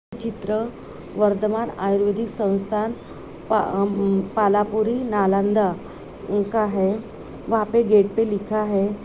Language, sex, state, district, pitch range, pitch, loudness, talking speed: Hindi, female, Bihar, Purnia, 200-220 Hz, 210 Hz, -22 LUFS, 95 wpm